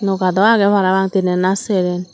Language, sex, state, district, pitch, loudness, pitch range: Chakma, female, Tripura, Dhalai, 190 Hz, -15 LUFS, 185-200 Hz